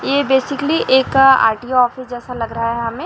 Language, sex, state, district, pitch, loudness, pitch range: Hindi, male, Chhattisgarh, Raipur, 255 Hz, -15 LUFS, 235-270 Hz